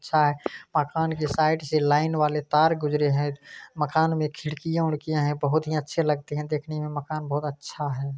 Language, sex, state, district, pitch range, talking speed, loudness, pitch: Hindi, male, Bihar, Kishanganj, 145-155 Hz, 200 wpm, -25 LUFS, 150 Hz